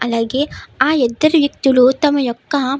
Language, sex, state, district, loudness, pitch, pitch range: Telugu, female, Andhra Pradesh, Krishna, -15 LUFS, 270 Hz, 250-290 Hz